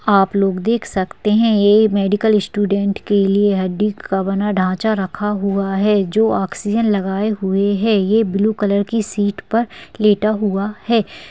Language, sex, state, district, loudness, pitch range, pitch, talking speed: Hindi, female, Bihar, Darbhanga, -17 LUFS, 195-215 Hz, 205 Hz, 165 wpm